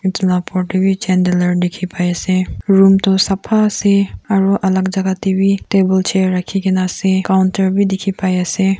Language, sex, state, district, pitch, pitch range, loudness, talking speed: Nagamese, female, Nagaland, Kohima, 190 Hz, 185-195 Hz, -15 LUFS, 185 wpm